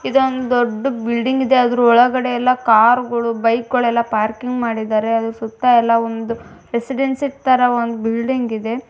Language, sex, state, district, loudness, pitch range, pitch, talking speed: Kannada, female, Karnataka, Bijapur, -17 LUFS, 230-250 Hz, 235 Hz, 155 wpm